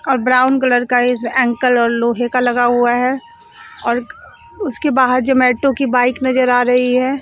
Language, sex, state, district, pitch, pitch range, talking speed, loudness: Hindi, female, Chandigarh, Chandigarh, 255 Hz, 245-265 Hz, 185 wpm, -15 LUFS